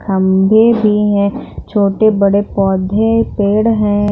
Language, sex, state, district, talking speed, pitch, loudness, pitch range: Hindi, female, Uttar Pradesh, Lucknow, 115 wpm, 205 Hz, -12 LUFS, 200-215 Hz